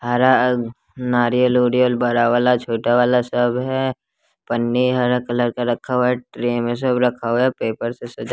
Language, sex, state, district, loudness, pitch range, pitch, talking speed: Hindi, male, Bihar, West Champaran, -19 LUFS, 120-125 Hz, 125 Hz, 175 wpm